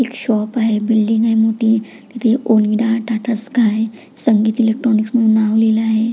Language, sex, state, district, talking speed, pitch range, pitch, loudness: Marathi, female, Maharashtra, Pune, 155 wpm, 220-230 Hz, 225 Hz, -16 LUFS